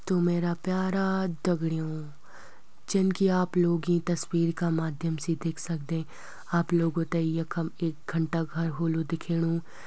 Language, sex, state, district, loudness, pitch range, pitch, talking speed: Garhwali, female, Uttarakhand, Uttarkashi, -28 LUFS, 165-175 Hz, 165 Hz, 140 wpm